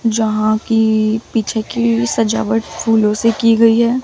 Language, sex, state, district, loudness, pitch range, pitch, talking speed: Hindi, female, Chandigarh, Chandigarh, -15 LUFS, 215-230 Hz, 225 Hz, 150 wpm